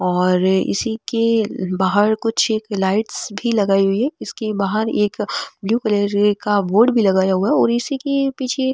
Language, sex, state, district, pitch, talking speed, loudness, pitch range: Marwari, female, Rajasthan, Nagaur, 215 Hz, 185 wpm, -18 LUFS, 195-230 Hz